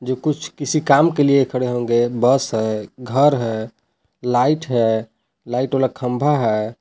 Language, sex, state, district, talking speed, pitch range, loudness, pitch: Hindi, male, Jharkhand, Palamu, 160 wpm, 120-140 Hz, -18 LUFS, 125 Hz